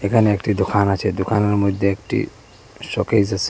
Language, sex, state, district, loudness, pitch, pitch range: Bengali, male, Assam, Hailakandi, -19 LUFS, 100 Hz, 100-105 Hz